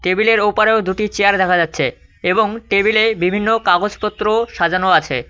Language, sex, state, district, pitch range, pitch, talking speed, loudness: Bengali, male, West Bengal, Cooch Behar, 185-220 Hz, 210 Hz, 160 wpm, -15 LUFS